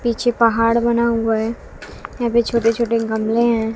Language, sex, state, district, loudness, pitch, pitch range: Hindi, female, Bihar, West Champaran, -18 LUFS, 230 Hz, 225-235 Hz